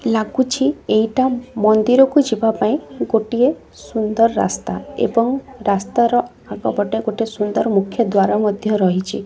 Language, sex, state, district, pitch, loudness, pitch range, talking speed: Odia, female, Odisha, Khordha, 225 Hz, -18 LUFS, 210-245 Hz, 110 wpm